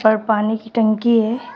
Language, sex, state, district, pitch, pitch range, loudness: Hindi, female, Uttar Pradesh, Shamli, 220 Hz, 220-230 Hz, -17 LUFS